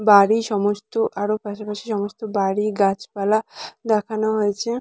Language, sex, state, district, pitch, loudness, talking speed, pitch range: Bengali, female, West Bengal, Purulia, 210 Hz, -21 LUFS, 110 wpm, 205-220 Hz